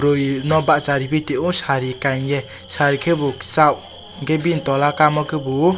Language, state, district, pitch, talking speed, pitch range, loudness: Kokborok, Tripura, West Tripura, 145 Hz, 155 wpm, 135-155 Hz, -18 LUFS